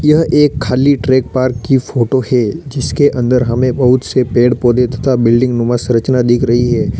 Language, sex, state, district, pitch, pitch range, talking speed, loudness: Hindi, male, Uttar Pradesh, Lalitpur, 125 Hz, 120-135 Hz, 195 wpm, -12 LUFS